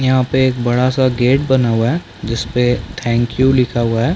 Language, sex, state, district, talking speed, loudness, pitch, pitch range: Hindi, male, Chhattisgarh, Bastar, 230 wpm, -15 LUFS, 125 Hz, 120-130 Hz